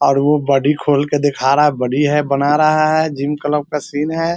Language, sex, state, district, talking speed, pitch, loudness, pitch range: Hindi, male, Bihar, Sitamarhi, 275 wpm, 145 Hz, -15 LUFS, 140-150 Hz